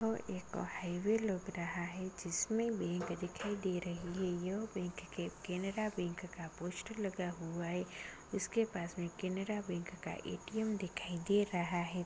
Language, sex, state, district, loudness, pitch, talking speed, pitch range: Kumaoni, female, Uttarakhand, Tehri Garhwal, -40 LUFS, 180 Hz, 160 wpm, 175-200 Hz